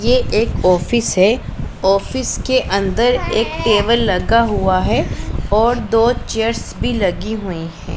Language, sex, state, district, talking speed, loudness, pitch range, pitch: Hindi, female, Punjab, Pathankot, 145 wpm, -16 LUFS, 195-235 Hz, 220 Hz